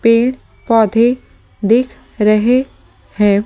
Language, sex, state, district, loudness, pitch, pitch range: Hindi, female, Delhi, New Delhi, -14 LUFS, 230 Hz, 210-245 Hz